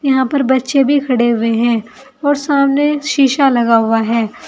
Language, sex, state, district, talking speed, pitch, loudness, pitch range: Hindi, female, Uttar Pradesh, Saharanpur, 175 wpm, 260 Hz, -14 LUFS, 235-280 Hz